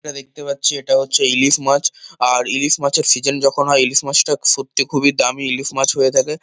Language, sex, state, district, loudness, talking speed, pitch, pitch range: Bengali, male, West Bengal, Kolkata, -15 LUFS, 205 wpm, 140 Hz, 135-140 Hz